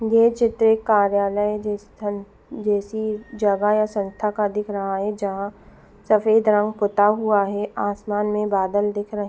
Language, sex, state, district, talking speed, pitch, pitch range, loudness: Hindi, female, Chhattisgarh, Raigarh, 160 wpm, 210 Hz, 205-215 Hz, -21 LUFS